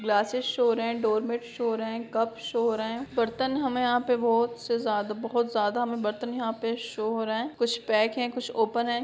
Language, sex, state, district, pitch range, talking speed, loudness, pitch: Hindi, female, Bihar, Begusarai, 225-240 Hz, 250 wpm, -28 LUFS, 235 Hz